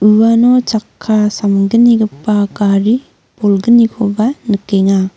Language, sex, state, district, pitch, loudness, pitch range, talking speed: Garo, female, Meghalaya, North Garo Hills, 210 Hz, -12 LUFS, 200-230 Hz, 70 wpm